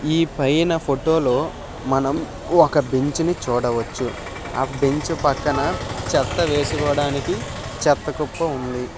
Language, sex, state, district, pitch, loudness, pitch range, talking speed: Telugu, male, Andhra Pradesh, Visakhapatnam, 140 Hz, -21 LUFS, 125-150 Hz, 105 wpm